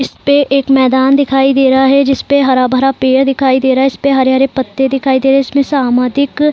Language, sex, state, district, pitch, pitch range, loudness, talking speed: Hindi, female, Bihar, Saran, 270 Hz, 260-275 Hz, -11 LUFS, 230 wpm